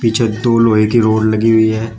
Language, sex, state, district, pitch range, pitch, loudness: Hindi, male, Uttar Pradesh, Shamli, 110-115 Hz, 110 Hz, -12 LUFS